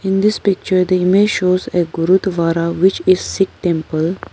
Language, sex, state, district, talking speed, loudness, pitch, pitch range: English, female, Arunachal Pradesh, Papum Pare, 165 wpm, -16 LUFS, 185 Hz, 170-195 Hz